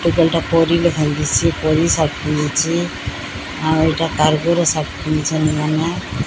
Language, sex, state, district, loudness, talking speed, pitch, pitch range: Odia, female, Odisha, Sambalpur, -17 LUFS, 125 wpm, 155 Hz, 150-165 Hz